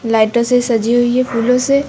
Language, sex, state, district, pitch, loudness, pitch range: Hindi, female, Uttar Pradesh, Lucknow, 240 Hz, -14 LUFS, 230-250 Hz